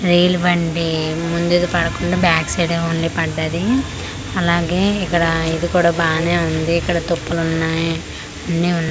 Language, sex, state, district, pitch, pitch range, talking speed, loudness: Telugu, female, Andhra Pradesh, Manyam, 170 Hz, 165-175 Hz, 130 wpm, -18 LUFS